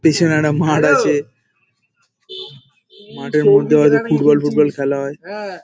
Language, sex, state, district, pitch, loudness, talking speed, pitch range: Bengali, male, West Bengal, Paschim Medinipur, 150 Hz, -15 LUFS, 140 wpm, 140-160 Hz